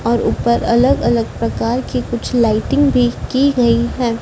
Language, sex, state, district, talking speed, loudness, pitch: Hindi, female, Madhya Pradesh, Dhar, 170 wpm, -15 LUFS, 220 Hz